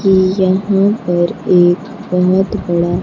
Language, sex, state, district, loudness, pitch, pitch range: Hindi, female, Bihar, Kaimur, -14 LUFS, 185 Hz, 175-200 Hz